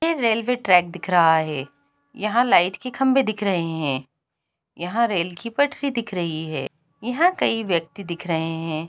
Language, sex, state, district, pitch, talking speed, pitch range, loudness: Hindi, female, Uttar Pradesh, Jalaun, 180 Hz, 175 wpm, 160-235 Hz, -22 LUFS